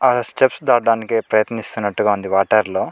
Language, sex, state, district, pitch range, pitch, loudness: Telugu, male, Andhra Pradesh, Chittoor, 100-115 Hz, 110 Hz, -17 LUFS